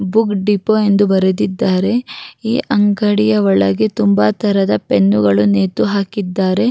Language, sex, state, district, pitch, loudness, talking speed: Kannada, female, Karnataka, Raichur, 195 Hz, -14 LUFS, 90 wpm